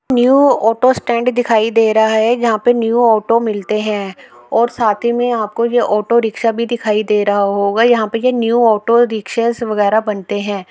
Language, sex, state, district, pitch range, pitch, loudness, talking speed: Hindi, female, Uttar Pradesh, Etah, 215-235 Hz, 225 Hz, -14 LUFS, 190 wpm